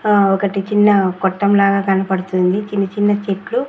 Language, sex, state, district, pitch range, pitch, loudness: Telugu, female, Andhra Pradesh, Sri Satya Sai, 195-205 Hz, 200 Hz, -16 LUFS